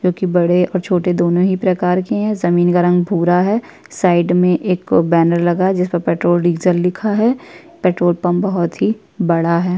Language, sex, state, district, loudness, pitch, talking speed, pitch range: Hindi, female, Chhattisgarh, Sukma, -15 LUFS, 180 Hz, 200 wpm, 175-185 Hz